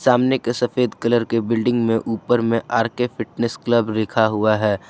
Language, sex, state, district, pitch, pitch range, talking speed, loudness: Hindi, male, Jharkhand, Garhwa, 115 Hz, 115-120 Hz, 185 wpm, -20 LUFS